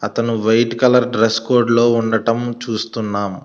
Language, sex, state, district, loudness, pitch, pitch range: Telugu, male, Telangana, Hyderabad, -16 LUFS, 115 Hz, 110-120 Hz